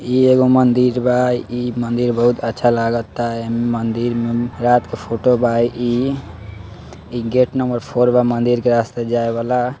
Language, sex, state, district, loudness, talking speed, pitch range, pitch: Hindi, male, Bihar, East Champaran, -17 LUFS, 185 wpm, 115-125 Hz, 120 Hz